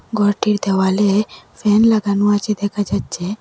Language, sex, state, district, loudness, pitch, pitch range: Bengali, female, Assam, Hailakandi, -17 LUFS, 205 Hz, 200-210 Hz